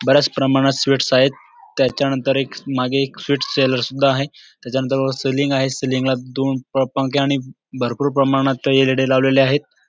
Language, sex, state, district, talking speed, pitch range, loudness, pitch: Marathi, male, Maharashtra, Dhule, 160 wpm, 130-135 Hz, -18 LUFS, 135 Hz